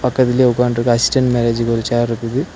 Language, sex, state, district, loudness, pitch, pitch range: Tamil, male, Tamil Nadu, Nilgiris, -15 LUFS, 120 Hz, 115-125 Hz